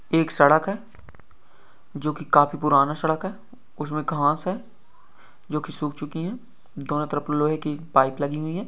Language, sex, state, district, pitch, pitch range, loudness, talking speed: Hindi, male, Maharashtra, Solapur, 150 Hz, 145-185 Hz, -22 LUFS, 175 wpm